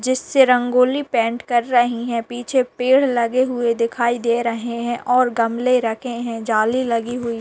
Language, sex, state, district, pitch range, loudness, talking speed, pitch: Hindi, female, Bihar, Kishanganj, 235-250 Hz, -19 LUFS, 180 wpm, 240 Hz